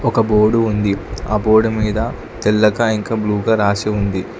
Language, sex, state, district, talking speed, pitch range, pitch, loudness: Telugu, male, Telangana, Hyderabad, 165 wpm, 105-110 Hz, 105 Hz, -16 LUFS